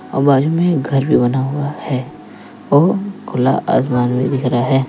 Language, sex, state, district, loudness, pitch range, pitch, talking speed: Hindi, male, Uttar Pradesh, Lalitpur, -16 LUFS, 130-150 Hz, 135 Hz, 185 wpm